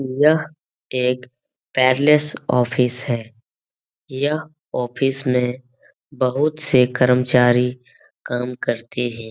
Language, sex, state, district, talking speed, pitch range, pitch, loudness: Hindi, male, Bihar, Jamui, 90 wpm, 125-140 Hz, 125 Hz, -19 LUFS